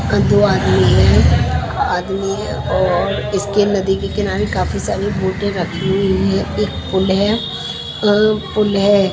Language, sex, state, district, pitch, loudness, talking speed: Hindi, female, Maharashtra, Mumbai Suburban, 195 Hz, -16 LUFS, 145 wpm